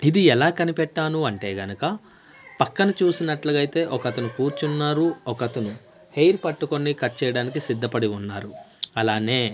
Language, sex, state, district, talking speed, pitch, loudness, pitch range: Telugu, male, Andhra Pradesh, Manyam, 115 wpm, 135 Hz, -23 LUFS, 120-155 Hz